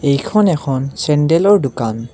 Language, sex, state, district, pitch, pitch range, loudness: Assamese, male, Assam, Kamrup Metropolitan, 140 Hz, 135-170 Hz, -15 LUFS